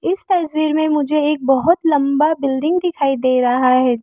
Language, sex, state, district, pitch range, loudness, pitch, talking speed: Hindi, female, Arunachal Pradesh, Lower Dibang Valley, 270-320 Hz, -16 LUFS, 295 Hz, 180 wpm